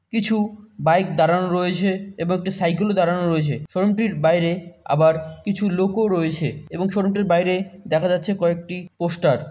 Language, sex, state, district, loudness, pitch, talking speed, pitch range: Bengali, male, West Bengal, Malda, -21 LUFS, 180 Hz, 160 wpm, 170-195 Hz